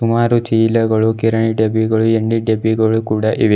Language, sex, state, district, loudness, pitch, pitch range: Kannada, male, Karnataka, Bidar, -15 LUFS, 110 Hz, 110-115 Hz